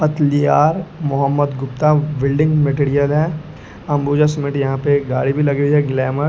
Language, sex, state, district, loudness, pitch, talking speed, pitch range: Hindi, male, Bihar, West Champaran, -17 LUFS, 145 Hz, 160 wpm, 140-150 Hz